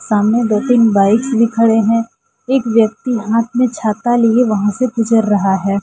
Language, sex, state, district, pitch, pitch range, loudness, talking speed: Hindi, female, Jharkhand, Deoghar, 230 Hz, 215-240 Hz, -14 LUFS, 185 wpm